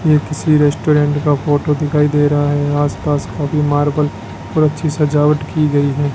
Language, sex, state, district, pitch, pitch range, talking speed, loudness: Hindi, male, Rajasthan, Bikaner, 150 Hz, 145-150 Hz, 175 wpm, -15 LUFS